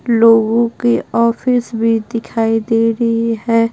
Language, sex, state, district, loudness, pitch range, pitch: Hindi, female, Bihar, Patna, -15 LUFS, 225-230 Hz, 230 Hz